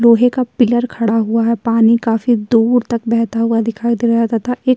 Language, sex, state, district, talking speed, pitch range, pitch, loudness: Hindi, female, Uttar Pradesh, Jyotiba Phule Nagar, 240 wpm, 230-240 Hz, 230 Hz, -14 LUFS